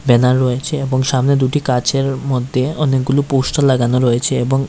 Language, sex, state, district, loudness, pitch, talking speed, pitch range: Bengali, male, Tripura, West Tripura, -15 LUFS, 130 Hz, 155 wpm, 125-140 Hz